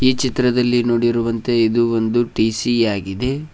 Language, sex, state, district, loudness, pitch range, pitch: Kannada, male, Karnataka, Koppal, -18 LUFS, 115-125 Hz, 120 Hz